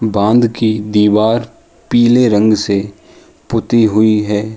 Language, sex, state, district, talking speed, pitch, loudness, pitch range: Hindi, male, Uttar Pradesh, Jalaun, 120 wpm, 110 Hz, -13 LUFS, 105-115 Hz